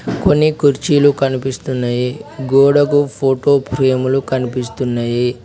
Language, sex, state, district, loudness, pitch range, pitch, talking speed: Telugu, male, Telangana, Mahabubabad, -15 LUFS, 125-145 Hz, 130 Hz, 90 wpm